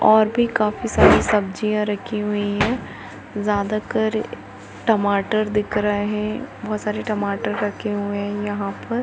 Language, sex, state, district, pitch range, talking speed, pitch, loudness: Hindi, female, Chhattisgarh, Bilaspur, 205-215 Hz, 135 wpm, 210 Hz, -21 LUFS